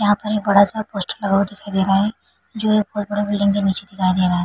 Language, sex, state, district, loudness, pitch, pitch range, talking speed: Hindi, female, Chhattisgarh, Bilaspur, -19 LUFS, 200 Hz, 195-210 Hz, 310 wpm